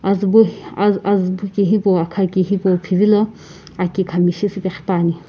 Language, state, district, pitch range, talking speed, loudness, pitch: Sumi, Nagaland, Kohima, 180-200 Hz, 135 wpm, -17 LUFS, 190 Hz